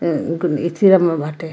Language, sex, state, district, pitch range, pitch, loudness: Bhojpuri, female, Bihar, Muzaffarpur, 155-175 Hz, 165 Hz, -17 LUFS